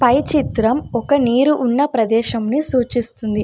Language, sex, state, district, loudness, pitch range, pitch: Telugu, female, Andhra Pradesh, Anantapur, -17 LUFS, 230-280 Hz, 245 Hz